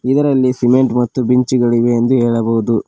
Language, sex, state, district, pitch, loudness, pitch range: Kannada, male, Karnataka, Koppal, 125 Hz, -14 LUFS, 120-130 Hz